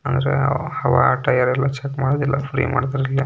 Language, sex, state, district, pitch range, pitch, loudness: Kannada, male, Karnataka, Belgaum, 125-140 Hz, 135 Hz, -19 LUFS